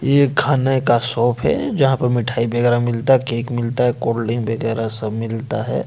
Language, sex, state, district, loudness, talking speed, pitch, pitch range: Hindi, male, Madhya Pradesh, Bhopal, -18 LUFS, 195 wpm, 120 Hz, 115-130 Hz